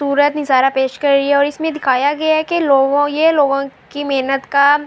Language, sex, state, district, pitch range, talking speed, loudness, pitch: Urdu, female, Andhra Pradesh, Anantapur, 275-295 Hz, 195 wpm, -15 LUFS, 285 Hz